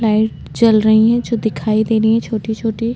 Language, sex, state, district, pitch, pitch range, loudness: Hindi, female, Maharashtra, Chandrapur, 220 Hz, 220-230 Hz, -15 LUFS